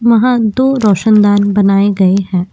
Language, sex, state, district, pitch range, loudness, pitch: Hindi, female, Uttar Pradesh, Jyotiba Phule Nagar, 195-230 Hz, -10 LUFS, 205 Hz